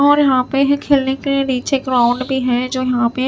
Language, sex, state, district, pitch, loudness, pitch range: Hindi, female, Chhattisgarh, Raipur, 265 Hz, -16 LUFS, 250-275 Hz